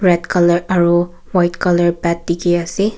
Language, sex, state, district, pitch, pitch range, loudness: Nagamese, female, Nagaland, Kohima, 175 Hz, 170-180 Hz, -15 LUFS